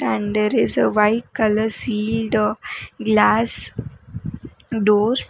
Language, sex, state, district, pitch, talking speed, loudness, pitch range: English, female, Karnataka, Bangalore, 220 Hz, 100 wpm, -19 LUFS, 210-230 Hz